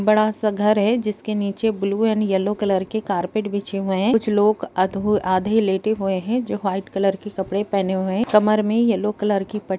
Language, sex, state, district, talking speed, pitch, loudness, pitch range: Hindi, female, Jharkhand, Sahebganj, 180 wpm, 205 Hz, -21 LUFS, 195-215 Hz